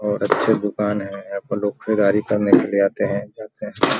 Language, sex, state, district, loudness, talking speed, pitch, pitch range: Hindi, male, Bihar, Vaishali, -20 LUFS, 180 wpm, 105 Hz, 100-105 Hz